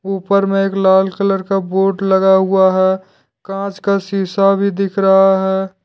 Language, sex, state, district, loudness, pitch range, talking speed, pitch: Hindi, male, Jharkhand, Deoghar, -14 LUFS, 190-195 Hz, 175 wpm, 195 Hz